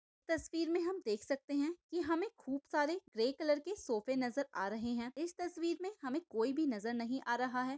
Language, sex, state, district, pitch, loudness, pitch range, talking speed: Hindi, female, Maharashtra, Aurangabad, 290 Hz, -38 LUFS, 245-335 Hz, 230 wpm